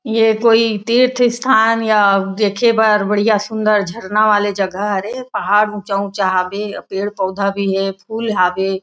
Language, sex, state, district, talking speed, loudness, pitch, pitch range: Chhattisgarhi, female, Chhattisgarh, Raigarh, 165 wpm, -16 LUFS, 210 Hz, 195-220 Hz